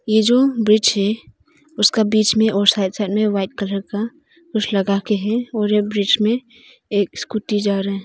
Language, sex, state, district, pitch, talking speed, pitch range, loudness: Hindi, female, Arunachal Pradesh, Longding, 215 Hz, 195 wpm, 200-230 Hz, -18 LUFS